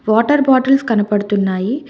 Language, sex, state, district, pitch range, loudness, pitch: Telugu, female, Telangana, Hyderabad, 205-270 Hz, -14 LUFS, 225 Hz